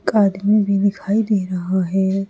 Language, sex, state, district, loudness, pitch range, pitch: Hindi, female, Uttar Pradesh, Saharanpur, -18 LUFS, 190-205 Hz, 195 Hz